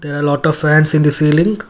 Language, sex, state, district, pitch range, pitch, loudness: English, male, Karnataka, Bangalore, 150-155 Hz, 155 Hz, -13 LUFS